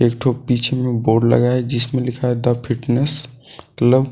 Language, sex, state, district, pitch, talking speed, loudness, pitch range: Hindi, male, Jharkhand, Deoghar, 125 Hz, 205 wpm, -18 LUFS, 120-130 Hz